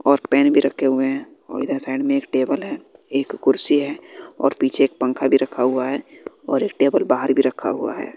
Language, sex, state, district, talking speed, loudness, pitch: Hindi, female, Bihar, West Champaran, 235 wpm, -20 LUFS, 140 Hz